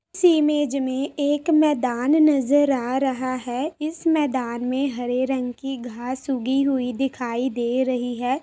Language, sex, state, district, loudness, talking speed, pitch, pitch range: Hindi, female, Uttar Pradesh, Jalaun, -22 LUFS, 165 wpm, 265 Hz, 250-290 Hz